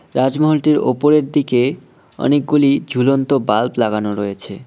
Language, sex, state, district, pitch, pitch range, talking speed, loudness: Bengali, male, West Bengal, Cooch Behar, 135 Hz, 125-145 Hz, 105 wpm, -16 LUFS